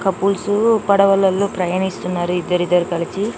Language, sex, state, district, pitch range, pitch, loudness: Telugu, female, Telangana, Nalgonda, 180-200 Hz, 190 Hz, -17 LUFS